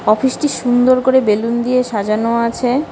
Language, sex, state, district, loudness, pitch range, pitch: Bengali, female, West Bengal, Cooch Behar, -15 LUFS, 230-255 Hz, 245 Hz